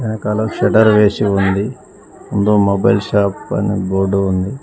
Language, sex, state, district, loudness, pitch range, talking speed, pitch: Telugu, male, Telangana, Mahabubabad, -15 LUFS, 100-105 Hz, 130 wpm, 100 Hz